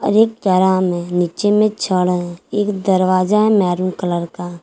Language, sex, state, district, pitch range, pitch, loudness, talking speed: Hindi, female, Jharkhand, Garhwa, 175-205 Hz, 185 Hz, -16 LUFS, 155 wpm